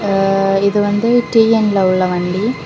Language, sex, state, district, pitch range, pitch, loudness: Tamil, female, Tamil Nadu, Kanyakumari, 195-225 Hz, 200 Hz, -14 LUFS